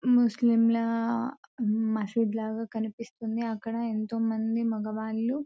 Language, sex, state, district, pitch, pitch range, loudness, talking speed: Telugu, female, Telangana, Nalgonda, 225 Hz, 220-230 Hz, -29 LUFS, 90 wpm